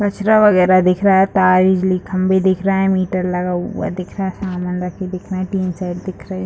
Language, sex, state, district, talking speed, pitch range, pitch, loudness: Hindi, female, Bihar, Purnia, 230 wpm, 185-190 Hz, 185 Hz, -16 LUFS